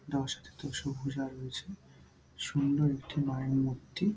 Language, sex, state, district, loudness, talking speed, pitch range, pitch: Bengali, male, West Bengal, Purulia, -34 LUFS, 100 wpm, 130-145 Hz, 135 Hz